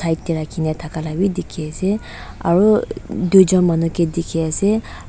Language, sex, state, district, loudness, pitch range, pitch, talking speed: Nagamese, female, Nagaland, Dimapur, -18 LUFS, 160-190 Hz, 170 Hz, 165 wpm